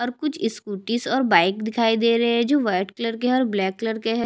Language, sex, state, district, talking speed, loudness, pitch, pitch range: Hindi, female, Chhattisgarh, Jashpur, 270 wpm, -21 LUFS, 230 Hz, 215-240 Hz